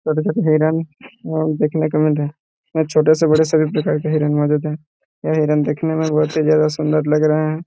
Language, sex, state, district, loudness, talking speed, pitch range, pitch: Hindi, male, Jharkhand, Jamtara, -17 LUFS, 210 wpm, 150-155 Hz, 155 Hz